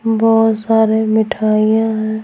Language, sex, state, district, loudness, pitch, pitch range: Hindi, female, Bihar, Patna, -14 LUFS, 220 Hz, 220-225 Hz